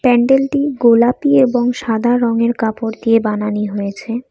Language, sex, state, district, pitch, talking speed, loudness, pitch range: Bengali, female, Assam, Kamrup Metropolitan, 235 Hz, 125 wpm, -15 LUFS, 225-250 Hz